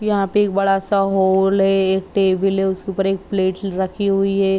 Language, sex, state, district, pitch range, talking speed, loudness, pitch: Hindi, female, Uttar Pradesh, Gorakhpur, 190-195 Hz, 210 wpm, -18 LUFS, 195 Hz